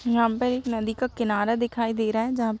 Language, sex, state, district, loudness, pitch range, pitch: Hindi, female, Jharkhand, Sahebganj, -25 LUFS, 225-240 Hz, 230 Hz